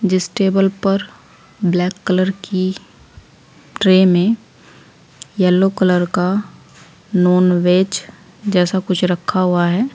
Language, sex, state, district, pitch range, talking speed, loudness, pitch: Hindi, female, Uttar Pradesh, Saharanpur, 180-195 Hz, 105 wpm, -16 LUFS, 185 Hz